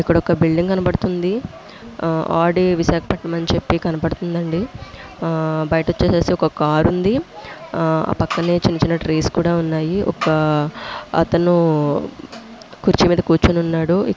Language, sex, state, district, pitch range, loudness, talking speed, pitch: Telugu, female, Andhra Pradesh, Visakhapatnam, 160-180 Hz, -18 LUFS, 115 wpm, 170 Hz